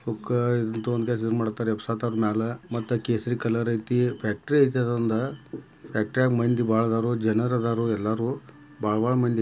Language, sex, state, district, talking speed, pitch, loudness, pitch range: Kannada, male, Karnataka, Belgaum, 120 wpm, 115 Hz, -25 LUFS, 110-120 Hz